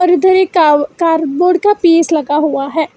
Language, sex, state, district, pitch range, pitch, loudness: Hindi, female, Karnataka, Bangalore, 305-360 Hz, 330 Hz, -12 LUFS